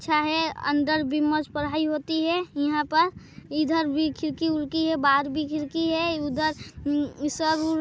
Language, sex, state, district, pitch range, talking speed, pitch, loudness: Hindi, female, Chhattisgarh, Sarguja, 295-320 Hz, 160 wpm, 305 Hz, -25 LUFS